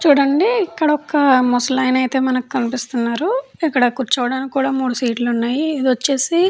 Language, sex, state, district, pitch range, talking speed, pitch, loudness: Telugu, female, Andhra Pradesh, Chittoor, 245-295 Hz, 140 wpm, 265 Hz, -17 LUFS